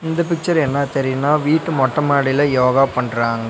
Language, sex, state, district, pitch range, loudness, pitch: Tamil, male, Tamil Nadu, Nilgiris, 130-155 Hz, -17 LUFS, 140 Hz